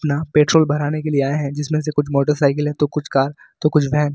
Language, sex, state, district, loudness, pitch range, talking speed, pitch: Hindi, male, Jharkhand, Ranchi, -18 LUFS, 145-150 Hz, 260 wpm, 150 Hz